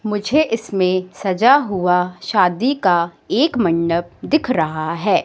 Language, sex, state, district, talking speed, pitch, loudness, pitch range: Hindi, female, Madhya Pradesh, Katni, 125 wpm, 190 Hz, -17 LUFS, 175-235 Hz